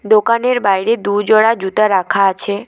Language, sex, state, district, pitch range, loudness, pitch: Bengali, female, West Bengal, Alipurduar, 195-225 Hz, -14 LUFS, 210 Hz